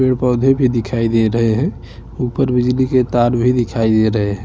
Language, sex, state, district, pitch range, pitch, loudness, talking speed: Hindi, male, Chhattisgarh, Bastar, 115-130 Hz, 120 Hz, -16 LUFS, 200 wpm